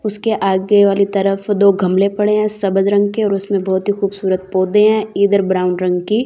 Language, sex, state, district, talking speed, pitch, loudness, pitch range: Hindi, female, Delhi, New Delhi, 210 wpm, 200 Hz, -15 LUFS, 190-210 Hz